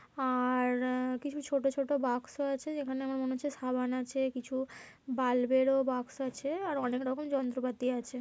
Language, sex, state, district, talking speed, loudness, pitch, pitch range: Bengali, female, West Bengal, Kolkata, 160 wpm, -33 LUFS, 260 Hz, 255-275 Hz